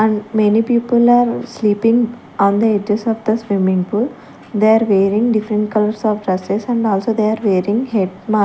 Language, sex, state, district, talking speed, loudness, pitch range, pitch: English, female, Chandigarh, Chandigarh, 185 wpm, -16 LUFS, 205-230 Hz, 215 Hz